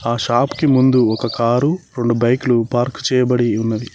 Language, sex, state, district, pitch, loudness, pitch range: Telugu, male, Telangana, Mahabubabad, 120 Hz, -16 LUFS, 120-130 Hz